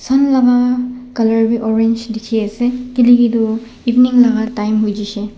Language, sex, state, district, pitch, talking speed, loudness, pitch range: Nagamese, male, Nagaland, Dimapur, 235 Hz, 135 wpm, -14 LUFS, 225-250 Hz